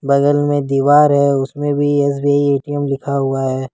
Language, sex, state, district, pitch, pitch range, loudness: Hindi, male, Jharkhand, Ranchi, 140 Hz, 140-145 Hz, -15 LUFS